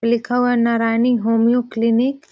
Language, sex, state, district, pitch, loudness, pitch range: Hindi, female, Bihar, Jahanabad, 235 Hz, -17 LUFS, 230-245 Hz